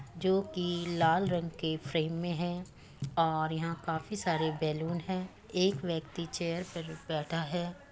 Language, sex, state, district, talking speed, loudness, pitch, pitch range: Hindi, female, Uttar Pradesh, Muzaffarnagar, 150 wpm, -33 LUFS, 165 Hz, 160-175 Hz